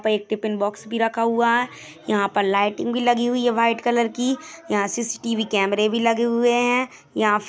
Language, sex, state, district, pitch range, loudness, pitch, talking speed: Hindi, female, Chhattisgarh, Rajnandgaon, 210-240 Hz, -21 LUFS, 230 Hz, 215 wpm